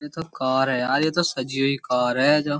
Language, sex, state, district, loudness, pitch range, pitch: Hindi, male, Uttar Pradesh, Jyotiba Phule Nagar, -22 LUFS, 130-150 Hz, 135 Hz